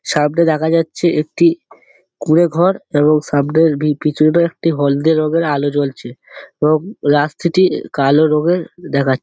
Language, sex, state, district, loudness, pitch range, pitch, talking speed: Bengali, male, West Bengal, Dakshin Dinajpur, -15 LUFS, 145-165 Hz, 155 Hz, 125 wpm